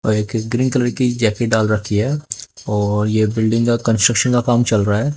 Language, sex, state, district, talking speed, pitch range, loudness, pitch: Hindi, male, Haryana, Jhajjar, 220 wpm, 105-120 Hz, -17 LUFS, 110 Hz